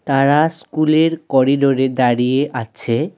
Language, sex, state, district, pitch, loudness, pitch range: Bengali, male, West Bengal, Alipurduar, 140 Hz, -16 LUFS, 130-155 Hz